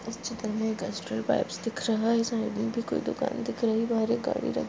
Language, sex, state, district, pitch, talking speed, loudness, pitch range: Hindi, female, Goa, North and South Goa, 225 Hz, 280 wpm, -29 LUFS, 220-235 Hz